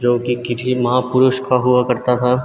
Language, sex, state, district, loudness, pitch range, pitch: Hindi, male, Uttarakhand, Tehri Garhwal, -16 LUFS, 120-125 Hz, 125 Hz